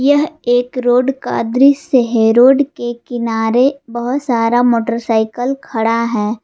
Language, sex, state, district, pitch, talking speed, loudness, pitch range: Hindi, female, Jharkhand, Garhwa, 245 Hz, 130 wpm, -14 LUFS, 230-265 Hz